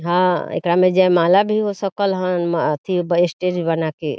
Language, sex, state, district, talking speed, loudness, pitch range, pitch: Bhojpuri, female, Bihar, Saran, 155 wpm, -18 LUFS, 170-185 Hz, 180 Hz